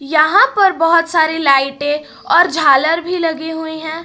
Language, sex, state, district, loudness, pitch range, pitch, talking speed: Hindi, female, Jharkhand, Palamu, -14 LUFS, 300-335 Hz, 320 Hz, 165 wpm